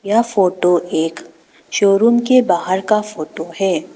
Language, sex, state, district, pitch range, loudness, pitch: Hindi, female, Arunachal Pradesh, Papum Pare, 175-215 Hz, -16 LUFS, 195 Hz